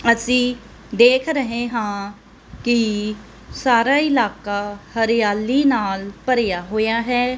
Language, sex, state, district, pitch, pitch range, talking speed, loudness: Punjabi, female, Punjab, Kapurthala, 230 Hz, 205-250 Hz, 100 wpm, -19 LUFS